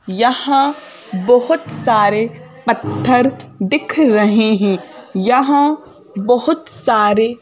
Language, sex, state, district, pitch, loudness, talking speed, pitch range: Hindi, female, Madhya Pradesh, Bhopal, 235 Hz, -15 LUFS, 80 wpm, 205-275 Hz